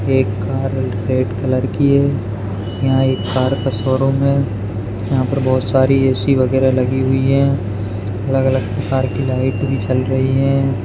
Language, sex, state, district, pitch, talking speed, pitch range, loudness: Hindi, male, Maharashtra, Dhule, 130 Hz, 175 wpm, 110-135 Hz, -17 LUFS